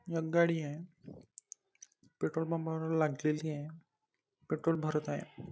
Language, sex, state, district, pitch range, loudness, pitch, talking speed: Marathi, male, Maharashtra, Nagpur, 155-165 Hz, -35 LUFS, 160 Hz, 120 wpm